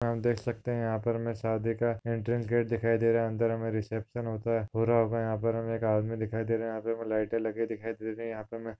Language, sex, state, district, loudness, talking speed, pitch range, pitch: Hindi, male, Maharashtra, Nagpur, -31 LUFS, 275 wpm, 110-115 Hz, 115 Hz